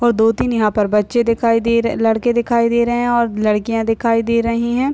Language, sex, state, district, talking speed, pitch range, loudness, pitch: Hindi, male, Bihar, Madhepura, 230 wpm, 225-235 Hz, -16 LUFS, 230 Hz